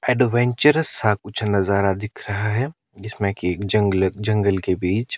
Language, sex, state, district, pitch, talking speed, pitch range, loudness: Hindi, male, Himachal Pradesh, Shimla, 105 Hz, 125 wpm, 100-120 Hz, -20 LUFS